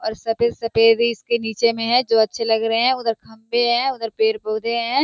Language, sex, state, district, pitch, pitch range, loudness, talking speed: Hindi, female, Bihar, Kishanganj, 230 Hz, 225-235 Hz, -19 LUFS, 225 wpm